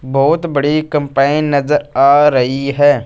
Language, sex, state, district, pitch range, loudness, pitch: Hindi, male, Punjab, Fazilka, 135-150 Hz, -13 LUFS, 145 Hz